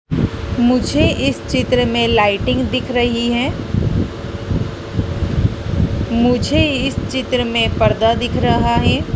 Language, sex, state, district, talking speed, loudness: Hindi, female, Madhya Pradesh, Dhar, 105 wpm, -17 LUFS